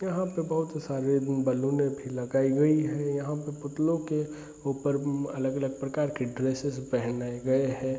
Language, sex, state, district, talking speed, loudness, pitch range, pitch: Hindi, male, Bihar, Madhepura, 165 wpm, -29 LUFS, 130-150 Hz, 140 Hz